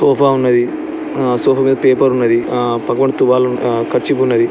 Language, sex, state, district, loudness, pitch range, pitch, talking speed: Telugu, male, Andhra Pradesh, Srikakulam, -14 LUFS, 120-135 Hz, 125 Hz, 175 wpm